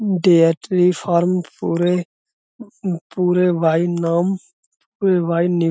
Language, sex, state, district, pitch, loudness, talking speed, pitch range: Hindi, male, Uttar Pradesh, Budaun, 180 Hz, -18 LUFS, 65 wpm, 170-185 Hz